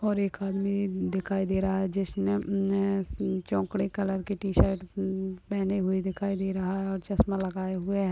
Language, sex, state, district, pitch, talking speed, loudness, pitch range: Hindi, female, Maharashtra, Dhule, 195 Hz, 185 wpm, -29 LUFS, 190-195 Hz